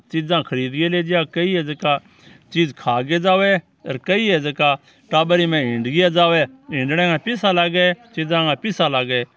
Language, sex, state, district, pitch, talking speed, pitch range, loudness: Marwari, male, Rajasthan, Churu, 170 Hz, 165 wpm, 145-180 Hz, -18 LUFS